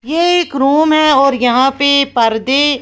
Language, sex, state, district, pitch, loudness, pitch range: Hindi, female, Maharashtra, Washim, 275 Hz, -12 LUFS, 260-305 Hz